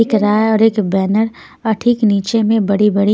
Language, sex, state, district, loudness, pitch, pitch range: Hindi, female, Punjab, Pathankot, -14 LUFS, 215 Hz, 205-225 Hz